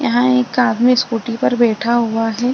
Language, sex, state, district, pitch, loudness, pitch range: Hindi, female, Uttar Pradesh, Budaun, 240 Hz, -15 LUFS, 230-250 Hz